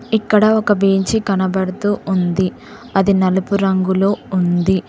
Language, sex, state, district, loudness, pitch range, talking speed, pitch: Telugu, female, Telangana, Mahabubabad, -16 LUFS, 190-205 Hz, 110 wpm, 195 Hz